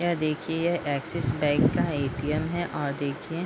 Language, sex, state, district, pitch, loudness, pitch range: Hindi, female, Bihar, Madhepura, 150 Hz, -27 LUFS, 145-165 Hz